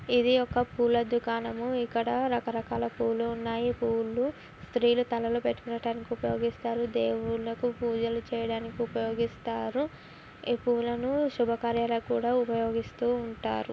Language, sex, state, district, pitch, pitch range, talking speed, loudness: Telugu, female, Telangana, Karimnagar, 235 Hz, 230-240 Hz, 100 wpm, -30 LUFS